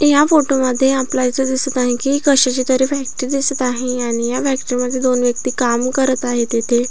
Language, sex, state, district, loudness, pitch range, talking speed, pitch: Marathi, female, Maharashtra, Aurangabad, -16 LUFS, 250-270 Hz, 200 wpm, 255 Hz